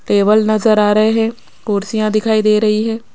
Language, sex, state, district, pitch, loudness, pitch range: Hindi, female, Rajasthan, Jaipur, 215 Hz, -14 LUFS, 210-220 Hz